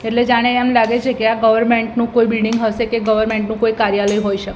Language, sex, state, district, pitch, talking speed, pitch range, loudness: Gujarati, female, Gujarat, Gandhinagar, 225 Hz, 250 wpm, 220-235 Hz, -16 LUFS